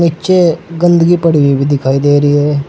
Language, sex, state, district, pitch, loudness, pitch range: Hindi, male, Uttar Pradesh, Saharanpur, 155 Hz, -11 LUFS, 145-170 Hz